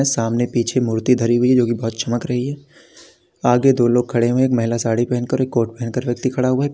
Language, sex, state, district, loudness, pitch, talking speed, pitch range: Hindi, male, Uttar Pradesh, Lalitpur, -18 LUFS, 120 Hz, 275 wpm, 120-130 Hz